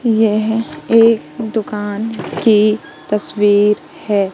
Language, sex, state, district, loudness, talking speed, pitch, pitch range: Hindi, female, Madhya Pradesh, Katni, -15 LUFS, 85 wpm, 215 Hz, 210-225 Hz